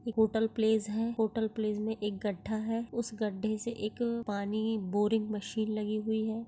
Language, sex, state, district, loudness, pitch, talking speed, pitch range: Hindi, female, Jharkhand, Sahebganj, -33 LUFS, 220 Hz, 185 wpm, 210-225 Hz